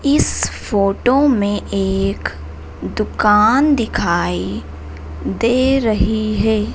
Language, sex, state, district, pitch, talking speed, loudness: Hindi, female, Madhya Pradesh, Dhar, 205 Hz, 80 wpm, -16 LUFS